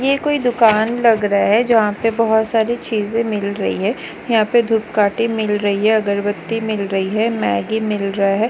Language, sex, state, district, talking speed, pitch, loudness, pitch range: Hindi, female, Goa, North and South Goa, 200 wpm, 220 Hz, -17 LUFS, 205-230 Hz